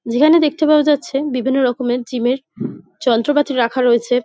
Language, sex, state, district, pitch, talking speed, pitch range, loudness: Bengali, female, West Bengal, Jhargram, 260 Hz, 155 wpm, 245-295 Hz, -16 LUFS